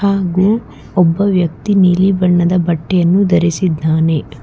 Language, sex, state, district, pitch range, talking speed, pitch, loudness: Kannada, female, Karnataka, Bangalore, 170-195 Hz, 95 wpm, 180 Hz, -13 LUFS